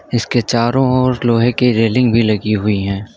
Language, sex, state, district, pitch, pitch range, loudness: Hindi, male, Uttar Pradesh, Lucknow, 115 Hz, 110-125 Hz, -14 LUFS